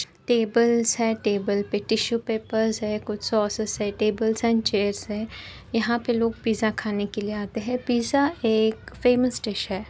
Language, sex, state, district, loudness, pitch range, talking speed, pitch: Hindi, female, Uttar Pradesh, Etah, -24 LUFS, 210-235 Hz, 170 wpm, 220 Hz